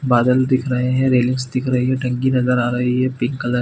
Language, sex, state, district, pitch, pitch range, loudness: Hindi, male, Chhattisgarh, Bilaspur, 125 Hz, 125-130 Hz, -18 LUFS